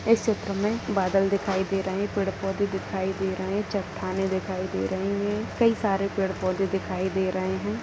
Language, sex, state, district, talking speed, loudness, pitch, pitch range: Hindi, female, Bihar, Purnia, 190 wpm, -27 LUFS, 195 Hz, 190-200 Hz